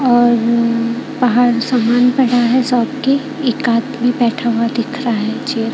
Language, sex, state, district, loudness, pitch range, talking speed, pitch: Hindi, female, Bihar, Katihar, -15 LUFS, 235-255 Hz, 155 wpm, 245 Hz